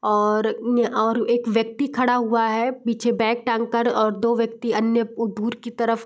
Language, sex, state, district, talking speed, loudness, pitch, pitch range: Hindi, female, Bihar, Gopalganj, 190 wpm, -22 LUFS, 230 Hz, 225-235 Hz